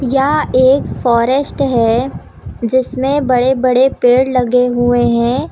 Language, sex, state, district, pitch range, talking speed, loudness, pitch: Hindi, female, Uttar Pradesh, Lucknow, 245-265 Hz, 120 wpm, -13 LUFS, 255 Hz